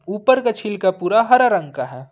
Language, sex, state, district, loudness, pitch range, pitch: Hindi, male, Jharkhand, Ranchi, -17 LUFS, 175-235 Hz, 205 Hz